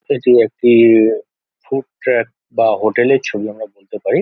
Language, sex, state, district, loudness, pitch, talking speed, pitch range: Bengali, male, West Bengal, Jhargram, -14 LUFS, 115 Hz, 185 wpm, 110-125 Hz